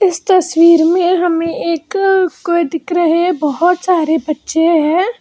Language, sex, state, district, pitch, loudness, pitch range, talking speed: Hindi, female, Karnataka, Bangalore, 340 Hz, -13 LUFS, 325-360 Hz, 140 wpm